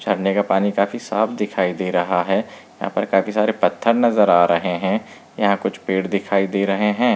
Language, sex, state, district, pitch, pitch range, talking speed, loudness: Hindi, male, Maharashtra, Chandrapur, 100 Hz, 95-105 Hz, 210 wpm, -19 LUFS